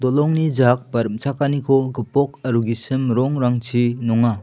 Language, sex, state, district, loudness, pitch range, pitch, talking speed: Garo, male, Meghalaya, South Garo Hills, -19 LUFS, 120-140 Hz, 125 Hz, 120 wpm